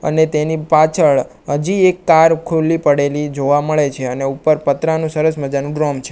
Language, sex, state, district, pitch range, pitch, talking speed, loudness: Gujarati, male, Gujarat, Gandhinagar, 145-160 Hz, 155 Hz, 175 wpm, -15 LUFS